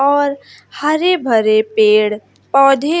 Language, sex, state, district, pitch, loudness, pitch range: Hindi, female, Bihar, West Champaran, 275 Hz, -14 LUFS, 215-295 Hz